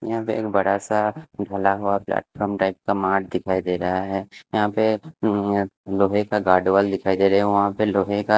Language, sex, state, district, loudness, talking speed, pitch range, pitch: Hindi, male, Himachal Pradesh, Shimla, -22 LUFS, 205 wpm, 95-105 Hz, 100 Hz